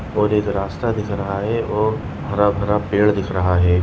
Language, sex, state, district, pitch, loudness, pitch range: Bhojpuri, male, Uttar Pradesh, Gorakhpur, 105 Hz, -19 LUFS, 100-105 Hz